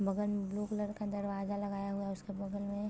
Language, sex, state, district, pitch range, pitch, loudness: Hindi, female, Chhattisgarh, Bilaspur, 200-205 Hz, 200 Hz, -38 LUFS